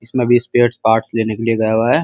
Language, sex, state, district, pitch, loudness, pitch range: Hindi, male, Uttar Pradesh, Muzaffarnagar, 115 Hz, -15 LUFS, 110-120 Hz